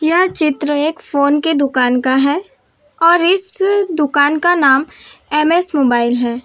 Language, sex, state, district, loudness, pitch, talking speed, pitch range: Hindi, female, Gujarat, Valsad, -14 LUFS, 295 Hz, 150 wpm, 280-340 Hz